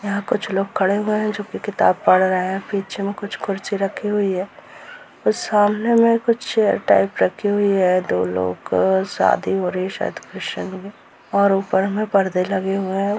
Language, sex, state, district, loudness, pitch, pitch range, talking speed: Hindi, female, Bihar, Purnia, -20 LUFS, 195 Hz, 190-205 Hz, 180 wpm